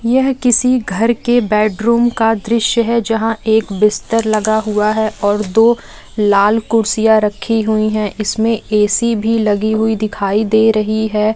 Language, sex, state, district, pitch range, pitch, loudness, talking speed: Hindi, female, Bihar, Jamui, 215-230 Hz, 220 Hz, -14 LUFS, 165 wpm